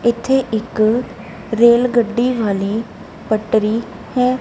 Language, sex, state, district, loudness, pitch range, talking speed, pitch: Punjabi, female, Punjab, Kapurthala, -17 LUFS, 215-240 Hz, 95 wpm, 230 Hz